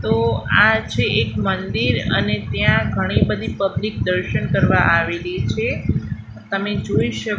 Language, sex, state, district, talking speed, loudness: Gujarati, female, Gujarat, Gandhinagar, 140 wpm, -19 LUFS